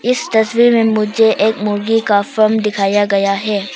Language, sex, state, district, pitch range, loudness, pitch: Hindi, female, Arunachal Pradesh, Papum Pare, 205-225 Hz, -14 LUFS, 215 Hz